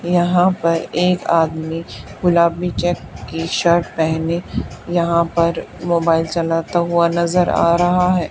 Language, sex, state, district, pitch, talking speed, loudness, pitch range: Hindi, female, Haryana, Charkhi Dadri, 170 Hz, 130 wpm, -17 LUFS, 165-175 Hz